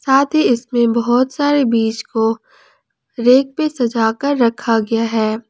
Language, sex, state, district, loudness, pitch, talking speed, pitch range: Hindi, female, Jharkhand, Palamu, -16 LUFS, 235 Hz, 155 wpm, 225-270 Hz